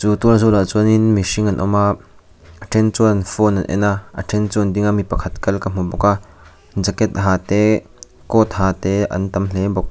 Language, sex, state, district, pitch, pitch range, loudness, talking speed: Mizo, male, Mizoram, Aizawl, 100 Hz, 95-105 Hz, -17 LUFS, 230 wpm